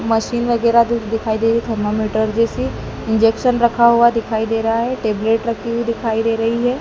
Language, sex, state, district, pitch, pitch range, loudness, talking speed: Hindi, male, Madhya Pradesh, Dhar, 230 Hz, 225-235 Hz, -17 LUFS, 205 wpm